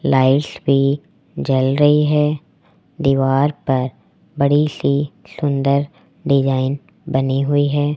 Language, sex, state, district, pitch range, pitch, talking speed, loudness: Hindi, male, Rajasthan, Jaipur, 135-150 Hz, 140 Hz, 105 wpm, -17 LUFS